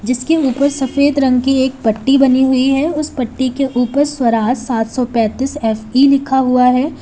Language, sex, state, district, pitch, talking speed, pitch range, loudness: Hindi, female, Uttar Pradesh, Lalitpur, 260 Hz, 190 wpm, 245-275 Hz, -14 LUFS